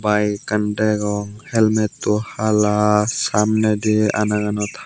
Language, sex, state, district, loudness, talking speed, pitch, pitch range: Chakma, male, Tripura, Unakoti, -19 LUFS, 85 wpm, 105 Hz, 105-110 Hz